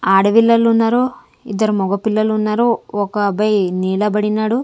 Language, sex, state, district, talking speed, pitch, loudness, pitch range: Telugu, female, Andhra Pradesh, Sri Satya Sai, 130 wpm, 215 Hz, -16 LUFS, 200-230 Hz